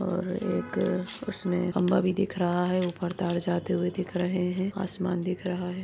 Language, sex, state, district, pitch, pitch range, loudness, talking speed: Hindi, female, Maharashtra, Nagpur, 180 Hz, 180-185 Hz, -29 LUFS, 205 wpm